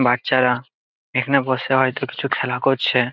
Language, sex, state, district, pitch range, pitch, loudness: Bengali, male, West Bengal, Jalpaiguri, 125-135 Hz, 130 Hz, -20 LUFS